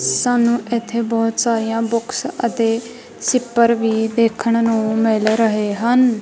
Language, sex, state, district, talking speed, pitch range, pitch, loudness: Punjabi, female, Punjab, Kapurthala, 125 wpm, 225-235 Hz, 230 Hz, -17 LUFS